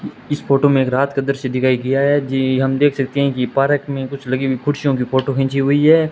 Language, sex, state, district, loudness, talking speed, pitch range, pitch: Hindi, male, Rajasthan, Bikaner, -17 LUFS, 265 wpm, 130-140 Hz, 135 Hz